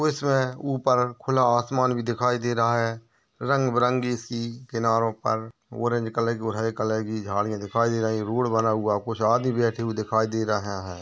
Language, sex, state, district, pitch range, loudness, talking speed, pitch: Hindi, male, Uttar Pradesh, Hamirpur, 110-125 Hz, -25 LUFS, 175 wpm, 115 Hz